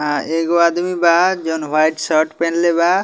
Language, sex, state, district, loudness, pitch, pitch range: Bhojpuri, male, Bihar, Muzaffarpur, -16 LUFS, 170 Hz, 160-170 Hz